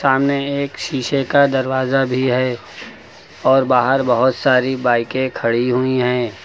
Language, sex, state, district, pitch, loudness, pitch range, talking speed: Hindi, male, Uttar Pradesh, Lucknow, 130 Hz, -17 LUFS, 125-135 Hz, 140 wpm